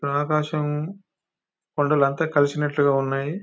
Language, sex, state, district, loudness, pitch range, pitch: Telugu, male, Telangana, Nalgonda, -22 LUFS, 140-155 Hz, 150 Hz